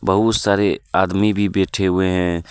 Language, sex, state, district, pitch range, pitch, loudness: Hindi, male, Jharkhand, Deoghar, 95-100 Hz, 95 Hz, -18 LUFS